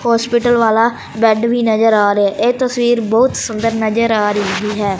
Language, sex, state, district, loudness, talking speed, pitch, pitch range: Punjabi, male, Punjab, Fazilka, -14 LUFS, 190 wpm, 225 Hz, 210-235 Hz